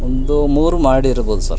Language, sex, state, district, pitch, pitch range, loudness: Kannada, male, Karnataka, Chamarajanagar, 130 Hz, 125-145 Hz, -16 LUFS